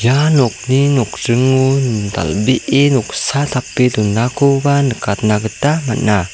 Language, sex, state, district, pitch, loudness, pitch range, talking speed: Garo, male, Meghalaya, South Garo Hills, 125 Hz, -14 LUFS, 110-140 Hz, 95 wpm